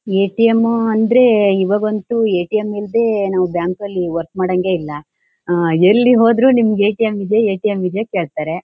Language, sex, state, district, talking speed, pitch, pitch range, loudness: Kannada, female, Karnataka, Shimoga, 180 wpm, 205 Hz, 185-225 Hz, -15 LUFS